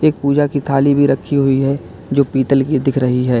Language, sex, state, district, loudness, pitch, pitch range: Hindi, male, Uttar Pradesh, Lalitpur, -15 LUFS, 135 Hz, 135-140 Hz